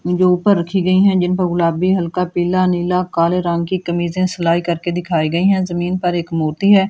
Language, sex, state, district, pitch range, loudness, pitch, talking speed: Hindi, female, Delhi, New Delhi, 170-185 Hz, -16 LUFS, 180 Hz, 225 wpm